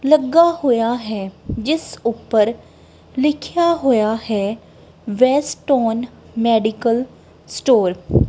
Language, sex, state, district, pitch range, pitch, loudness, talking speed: Punjabi, female, Punjab, Kapurthala, 220-275 Hz, 235 Hz, -18 LUFS, 85 wpm